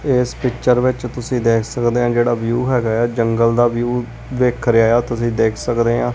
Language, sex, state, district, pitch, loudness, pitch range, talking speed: Punjabi, male, Punjab, Kapurthala, 120 Hz, -17 LUFS, 115-125 Hz, 205 wpm